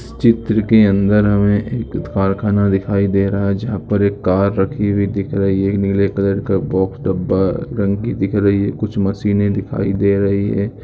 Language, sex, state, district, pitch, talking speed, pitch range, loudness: Hindi, male, Uttar Pradesh, Muzaffarnagar, 100 Hz, 200 wpm, 100-105 Hz, -16 LUFS